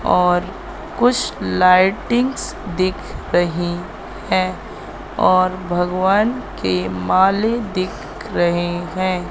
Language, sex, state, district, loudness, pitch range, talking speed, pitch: Hindi, female, Madhya Pradesh, Katni, -18 LUFS, 175-190 Hz, 85 wpm, 185 Hz